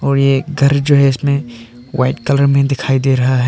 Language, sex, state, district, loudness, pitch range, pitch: Hindi, male, Arunachal Pradesh, Papum Pare, -14 LUFS, 130-140 Hz, 135 Hz